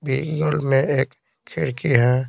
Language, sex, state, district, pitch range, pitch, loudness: Hindi, male, Bihar, Patna, 130-150 Hz, 135 Hz, -21 LUFS